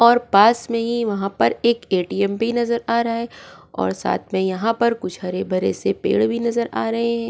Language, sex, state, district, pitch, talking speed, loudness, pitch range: Hindi, female, Goa, North and South Goa, 230 Hz, 230 wpm, -20 LUFS, 195-235 Hz